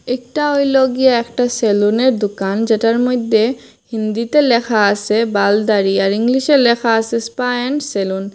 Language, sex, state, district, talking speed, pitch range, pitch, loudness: Bengali, female, Assam, Hailakandi, 150 wpm, 210-250 Hz, 230 Hz, -15 LUFS